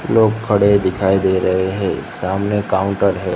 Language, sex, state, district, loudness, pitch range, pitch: Hindi, male, Gujarat, Gandhinagar, -17 LUFS, 95-100 Hz, 95 Hz